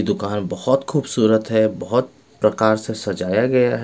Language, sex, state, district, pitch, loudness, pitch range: Hindi, male, Bihar, West Champaran, 110 Hz, -19 LUFS, 105-130 Hz